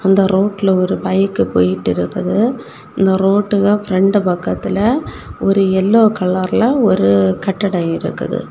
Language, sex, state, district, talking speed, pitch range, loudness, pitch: Tamil, female, Tamil Nadu, Kanyakumari, 115 wpm, 185-205 Hz, -15 LUFS, 195 Hz